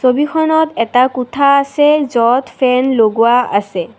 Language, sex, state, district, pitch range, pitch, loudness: Assamese, female, Assam, Kamrup Metropolitan, 235-285 Hz, 255 Hz, -13 LUFS